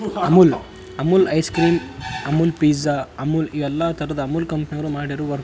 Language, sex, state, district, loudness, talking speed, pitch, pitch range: Kannada, male, Karnataka, Raichur, -20 LUFS, 120 wpm, 155 Hz, 145-165 Hz